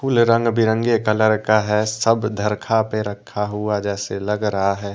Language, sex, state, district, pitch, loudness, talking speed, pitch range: Hindi, male, Jharkhand, Deoghar, 105 Hz, -19 LUFS, 180 wpm, 105-110 Hz